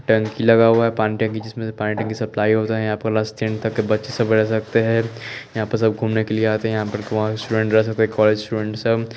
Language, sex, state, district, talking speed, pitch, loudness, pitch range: Hindi, male, Chandigarh, Chandigarh, 255 wpm, 110 Hz, -20 LUFS, 110-115 Hz